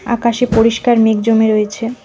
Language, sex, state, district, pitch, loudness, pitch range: Bengali, female, West Bengal, Cooch Behar, 230 Hz, -13 LUFS, 220-235 Hz